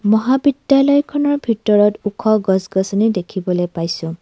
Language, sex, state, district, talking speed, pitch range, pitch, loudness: Assamese, female, Assam, Kamrup Metropolitan, 100 wpm, 190-265 Hz, 210 Hz, -16 LUFS